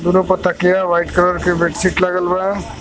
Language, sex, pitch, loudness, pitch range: Bhojpuri, male, 180 Hz, -16 LUFS, 175-185 Hz